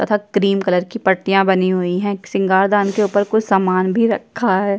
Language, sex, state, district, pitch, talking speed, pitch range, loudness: Hindi, female, Uttar Pradesh, Jyotiba Phule Nagar, 195 Hz, 215 wpm, 190-205 Hz, -17 LUFS